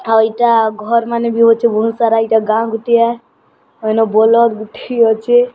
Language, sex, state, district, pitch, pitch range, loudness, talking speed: Odia, female, Odisha, Sambalpur, 230 Hz, 220-235 Hz, -13 LUFS, 160 wpm